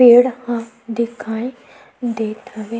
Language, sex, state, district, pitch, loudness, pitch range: Chhattisgarhi, female, Chhattisgarh, Sukma, 235 Hz, -20 LUFS, 225-245 Hz